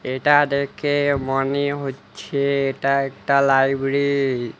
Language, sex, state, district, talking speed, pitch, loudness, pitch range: Bengali, male, West Bengal, Alipurduar, 105 wpm, 140 Hz, -20 LUFS, 135-140 Hz